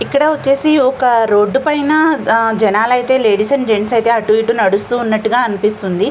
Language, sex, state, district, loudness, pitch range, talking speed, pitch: Telugu, female, Andhra Pradesh, Visakhapatnam, -13 LUFS, 215-270 Hz, 155 wpm, 235 Hz